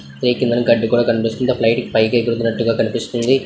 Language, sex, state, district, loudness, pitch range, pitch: Telugu, male, Andhra Pradesh, Visakhapatnam, -17 LUFS, 115-120 Hz, 115 Hz